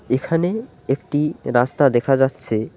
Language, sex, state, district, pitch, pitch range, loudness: Bengali, male, West Bengal, Alipurduar, 135 Hz, 120-150 Hz, -20 LUFS